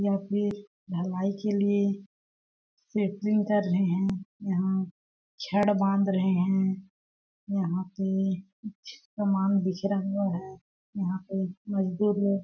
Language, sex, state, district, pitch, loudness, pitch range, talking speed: Hindi, female, Chhattisgarh, Balrampur, 195 Hz, -28 LUFS, 190-200 Hz, 115 wpm